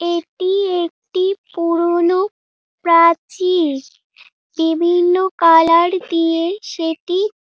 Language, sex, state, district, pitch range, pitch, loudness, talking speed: Bengali, female, West Bengal, Dakshin Dinajpur, 335-370 Hz, 345 Hz, -16 LUFS, 65 wpm